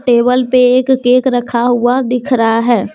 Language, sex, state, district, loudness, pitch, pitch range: Hindi, female, Jharkhand, Deoghar, -12 LUFS, 250 Hz, 240-255 Hz